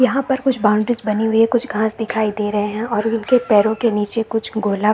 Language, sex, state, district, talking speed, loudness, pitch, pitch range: Hindi, female, Bihar, Saran, 255 wpm, -18 LUFS, 220 Hz, 210-230 Hz